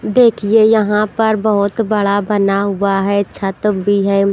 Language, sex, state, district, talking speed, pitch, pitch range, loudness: Hindi, female, Punjab, Pathankot, 150 wpm, 205 Hz, 200-215 Hz, -14 LUFS